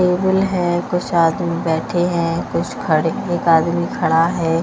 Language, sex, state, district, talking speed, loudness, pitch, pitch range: Hindi, female, Himachal Pradesh, Shimla, 140 wpm, -18 LUFS, 170 Hz, 165-180 Hz